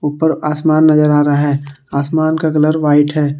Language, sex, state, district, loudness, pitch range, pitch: Hindi, male, Jharkhand, Palamu, -13 LUFS, 145-155 Hz, 150 Hz